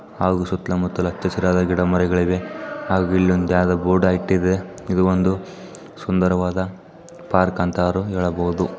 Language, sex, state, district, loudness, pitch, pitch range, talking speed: Kannada, male, Karnataka, Chamarajanagar, -20 LUFS, 90 Hz, 90-95 Hz, 130 wpm